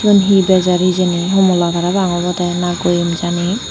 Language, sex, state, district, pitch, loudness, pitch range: Chakma, female, Tripura, Unakoti, 180 Hz, -14 LUFS, 175-190 Hz